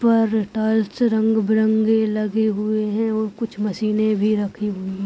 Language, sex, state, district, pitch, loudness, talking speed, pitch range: Hindi, female, Maharashtra, Sindhudurg, 215 Hz, -20 LUFS, 130 wpm, 210-220 Hz